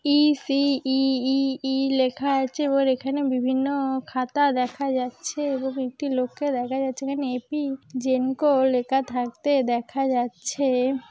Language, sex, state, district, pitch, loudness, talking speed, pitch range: Bengali, female, West Bengal, Jalpaiguri, 265 Hz, -24 LUFS, 130 wpm, 255-275 Hz